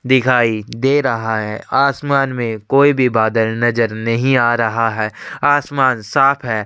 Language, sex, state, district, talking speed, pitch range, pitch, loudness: Hindi, male, Chhattisgarh, Sukma, 155 wpm, 110-135 Hz, 120 Hz, -16 LUFS